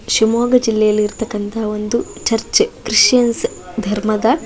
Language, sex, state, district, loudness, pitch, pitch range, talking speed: Kannada, female, Karnataka, Shimoga, -16 LUFS, 220 Hz, 210-230 Hz, 110 wpm